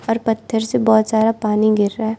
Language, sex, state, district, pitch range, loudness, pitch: Hindi, female, Arunachal Pradesh, Lower Dibang Valley, 215-225 Hz, -17 LUFS, 220 Hz